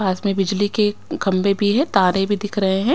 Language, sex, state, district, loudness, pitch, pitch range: Hindi, female, Himachal Pradesh, Shimla, -19 LUFS, 200 Hz, 195-205 Hz